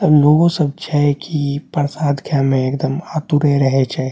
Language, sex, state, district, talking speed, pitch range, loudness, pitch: Maithili, male, Bihar, Saharsa, 175 wpm, 135-150 Hz, -16 LUFS, 145 Hz